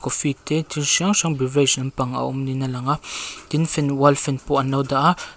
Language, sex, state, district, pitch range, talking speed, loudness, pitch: Mizo, female, Mizoram, Aizawl, 135-155 Hz, 235 wpm, -21 LUFS, 140 Hz